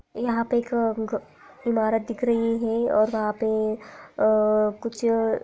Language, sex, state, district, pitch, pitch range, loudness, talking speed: Hindi, female, Bihar, Jahanabad, 225 Hz, 215-235 Hz, -24 LUFS, 120 wpm